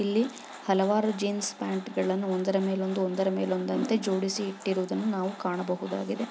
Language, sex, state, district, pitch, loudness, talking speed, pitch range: Kannada, female, Karnataka, Chamarajanagar, 190 Hz, -29 LUFS, 95 wpm, 185-205 Hz